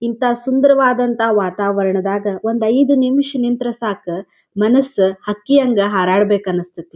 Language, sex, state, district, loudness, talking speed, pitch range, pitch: Kannada, female, Karnataka, Dharwad, -16 LUFS, 110 wpm, 195-250 Hz, 215 Hz